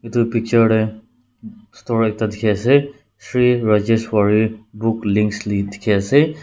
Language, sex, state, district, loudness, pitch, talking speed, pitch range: Nagamese, male, Nagaland, Dimapur, -18 LUFS, 115 Hz, 130 wpm, 105-120 Hz